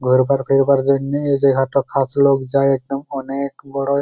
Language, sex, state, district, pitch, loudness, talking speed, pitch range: Bengali, male, West Bengal, Malda, 140 Hz, -17 LUFS, 165 wpm, 135-140 Hz